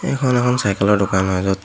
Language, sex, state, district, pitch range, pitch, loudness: Assamese, male, Assam, Hailakandi, 95-125 Hz, 100 Hz, -17 LUFS